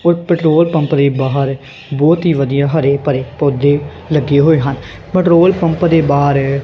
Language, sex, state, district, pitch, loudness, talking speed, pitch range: Punjabi, female, Punjab, Kapurthala, 145 Hz, -13 LUFS, 165 wpm, 140-165 Hz